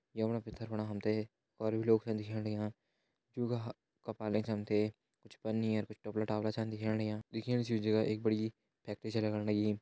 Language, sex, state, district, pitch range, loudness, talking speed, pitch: Hindi, male, Uttarakhand, Tehri Garhwal, 105-110 Hz, -37 LUFS, 220 wpm, 110 Hz